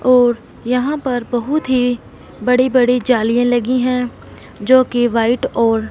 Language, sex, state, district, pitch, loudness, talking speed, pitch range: Hindi, female, Punjab, Fazilka, 250 Hz, -16 LUFS, 130 wpm, 240-255 Hz